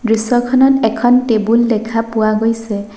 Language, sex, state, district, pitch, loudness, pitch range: Assamese, female, Assam, Sonitpur, 225 Hz, -14 LUFS, 220-245 Hz